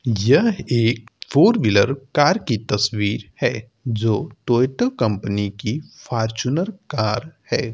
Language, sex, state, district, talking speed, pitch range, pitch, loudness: Hindi, male, Uttar Pradesh, Hamirpur, 110 wpm, 110-135 Hz, 120 Hz, -20 LUFS